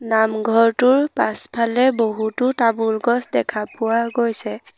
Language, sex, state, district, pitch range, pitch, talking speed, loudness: Assamese, female, Assam, Sonitpur, 220-245 Hz, 230 Hz, 100 wpm, -18 LUFS